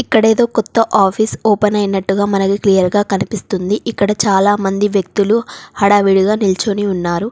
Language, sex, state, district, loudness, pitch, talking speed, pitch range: Telugu, female, Telangana, Komaram Bheem, -14 LUFS, 205 Hz, 140 wpm, 195-215 Hz